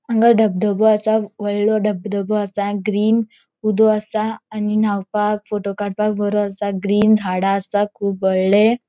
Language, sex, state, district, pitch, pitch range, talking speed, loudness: Konkani, female, Goa, North and South Goa, 210 Hz, 205-215 Hz, 140 wpm, -18 LUFS